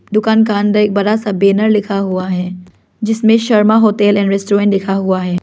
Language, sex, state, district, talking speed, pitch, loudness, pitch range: Hindi, female, Arunachal Pradesh, Lower Dibang Valley, 200 wpm, 205 Hz, -13 LUFS, 195-215 Hz